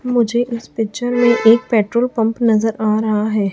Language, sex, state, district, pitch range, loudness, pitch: Hindi, female, Chhattisgarh, Raipur, 220-240 Hz, -16 LUFS, 225 Hz